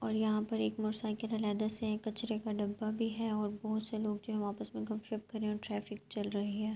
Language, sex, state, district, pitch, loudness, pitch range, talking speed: Urdu, female, Andhra Pradesh, Anantapur, 215 Hz, -37 LUFS, 210-220 Hz, 285 wpm